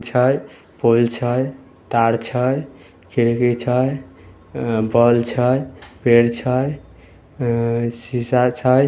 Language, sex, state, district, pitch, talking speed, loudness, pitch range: Maithili, male, Bihar, Samastipur, 120 Hz, 75 wpm, -19 LUFS, 115-130 Hz